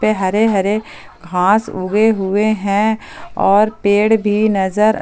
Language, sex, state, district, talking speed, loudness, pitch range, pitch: Hindi, female, Jharkhand, Palamu, 130 wpm, -15 LUFS, 195-215 Hz, 210 Hz